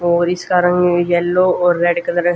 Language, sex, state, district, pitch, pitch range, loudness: Hindi, female, Haryana, Jhajjar, 175 Hz, 175-180 Hz, -15 LUFS